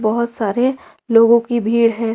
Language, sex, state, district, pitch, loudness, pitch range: Hindi, female, Jharkhand, Ranchi, 230 Hz, -16 LUFS, 225-240 Hz